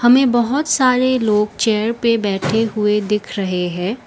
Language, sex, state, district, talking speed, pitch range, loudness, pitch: Hindi, female, Assam, Kamrup Metropolitan, 160 wpm, 210-240 Hz, -17 LUFS, 220 Hz